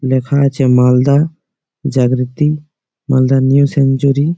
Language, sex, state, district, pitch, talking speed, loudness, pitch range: Bengali, male, West Bengal, Malda, 140 Hz, 110 wpm, -13 LUFS, 130-145 Hz